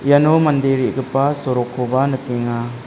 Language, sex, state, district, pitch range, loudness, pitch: Garo, male, Meghalaya, West Garo Hills, 125-140 Hz, -17 LUFS, 130 Hz